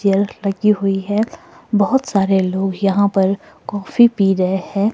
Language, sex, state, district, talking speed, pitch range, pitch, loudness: Hindi, female, Himachal Pradesh, Shimla, 160 wpm, 195-210 Hz, 200 Hz, -17 LUFS